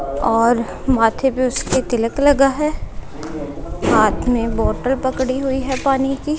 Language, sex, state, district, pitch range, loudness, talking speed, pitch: Hindi, female, Punjab, Kapurthala, 235-270 Hz, -18 LUFS, 140 wpm, 260 Hz